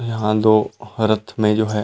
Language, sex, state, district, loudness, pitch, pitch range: Chhattisgarhi, male, Chhattisgarh, Rajnandgaon, -18 LUFS, 110 Hz, 105-110 Hz